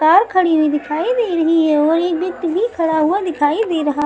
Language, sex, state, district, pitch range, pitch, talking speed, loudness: Hindi, female, Maharashtra, Mumbai Suburban, 310-370 Hz, 330 Hz, 220 wpm, -16 LUFS